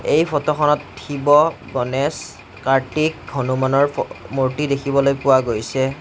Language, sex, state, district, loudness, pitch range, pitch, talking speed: Assamese, male, Assam, Kamrup Metropolitan, -19 LUFS, 130-150 Hz, 140 Hz, 120 wpm